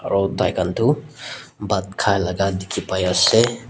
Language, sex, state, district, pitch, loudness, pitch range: Nagamese, male, Nagaland, Dimapur, 100 Hz, -20 LUFS, 95-115 Hz